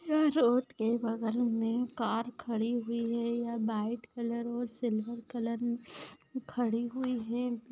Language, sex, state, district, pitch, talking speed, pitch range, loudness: Hindi, female, Maharashtra, Aurangabad, 235 Hz, 140 wpm, 230-245 Hz, -33 LUFS